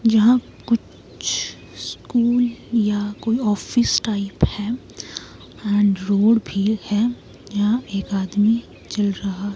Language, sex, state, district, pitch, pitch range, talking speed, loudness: Hindi, female, Himachal Pradesh, Shimla, 215 Hz, 205-230 Hz, 115 wpm, -21 LUFS